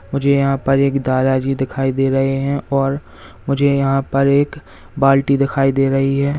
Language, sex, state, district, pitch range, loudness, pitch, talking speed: Hindi, male, Uttar Pradesh, Lalitpur, 135-140 Hz, -16 LUFS, 135 Hz, 190 wpm